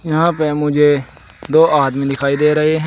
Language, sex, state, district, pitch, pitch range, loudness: Hindi, male, Uttar Pradesh, Saharanpur, 150 Hz, 140-155 Hz, -14 LUFS